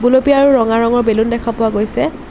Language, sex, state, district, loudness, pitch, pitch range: Assamese, female, Assam, Kamrup Metropolitan, -13 LUFS, 235 Hz, 225-255 Hz